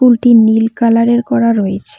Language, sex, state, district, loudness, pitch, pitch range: Bengali, female, West Bengal, Cooch Behar, -11 LUFS, 230 Hz, 225-240 Hz